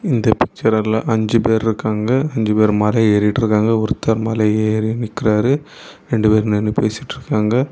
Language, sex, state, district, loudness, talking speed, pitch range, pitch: Tamil, male, Tamil Nadu, Kanyakumari, -17 LUFS, 125 wpm, 110-115 Hz, 110 Hz